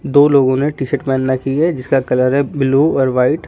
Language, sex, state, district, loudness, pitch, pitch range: Hindi, male, Delhi, New Delhi, -15 LUFS, 135 Hz, 130-145 Hz